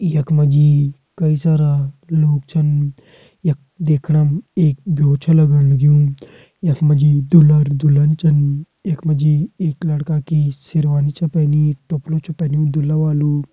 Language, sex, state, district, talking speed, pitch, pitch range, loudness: Hindi, male, Uttarakhand, Uttarkashi, 145 wpm, 150 Hz, 145-155 Hz, -16 LUFS